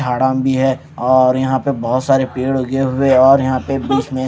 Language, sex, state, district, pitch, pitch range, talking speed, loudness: Hindi, male, Punjab, Kapurthala, 130 Hz, 130-135 Hz, 225 wpm, -15 LUFS